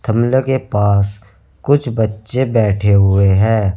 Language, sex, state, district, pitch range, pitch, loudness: Hindi, male, Uttar Pradesh, Saharanpur, 100-120 Hz, 105 Hz, -14 LUFS